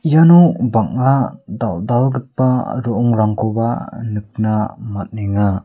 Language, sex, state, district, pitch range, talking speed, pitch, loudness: Garo, male, Meghalaya, South Garo Hills, 110-130 Hz, 65 wpm, 115 Hz, -16 LUFS